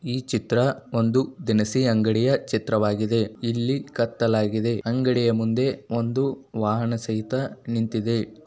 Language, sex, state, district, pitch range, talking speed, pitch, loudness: Kannada, male, Karnataka, Bijapur, 110-125 Hz, 105 wpm, 115 Hz, -24 LUFS